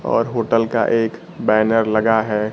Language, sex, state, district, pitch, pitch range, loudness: Hindi, male, Bihar, Kaimur, 115 Hz, 110-115 Hz, -18 LUFS